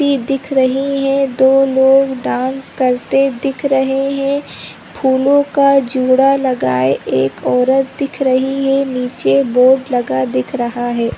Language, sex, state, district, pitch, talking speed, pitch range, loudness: Hindi, female, Chhattisgarh, Raigarh, 265 Hz, 140 wpm, 250-275 Hz, -14 LUFS